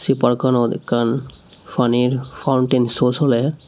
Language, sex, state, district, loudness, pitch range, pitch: Chakma, male, Tripura, Unakoti, -18 LUFS, 120-130 Hz, 125 Hz